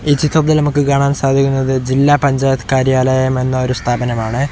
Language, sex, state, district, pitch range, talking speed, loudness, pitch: Malayalam, male, Kerala, Kozhikode, 130-140 Hz, 145 wpm, -14 LUFS, 135 Hz